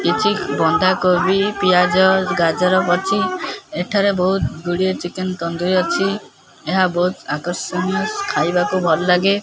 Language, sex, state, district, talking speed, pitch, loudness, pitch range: Odia, male, Odisha, Khordha, 115 wpm, 185 Hz, -18 LUFS, 175-195 Hz